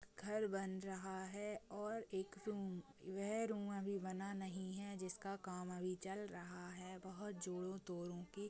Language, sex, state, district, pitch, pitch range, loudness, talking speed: Hindi, female, Uttar Pradesh, Jyotiba Phule Nagar, 190 Hz, 185-205 Hz, -47 LUFS, 170 wpm